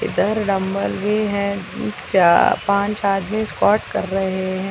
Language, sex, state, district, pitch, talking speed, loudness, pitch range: Hindi, female, Chhattisgarh, Raigarh, 200 Hz, 140 wpm, -19 LUFS, 190-205 Hz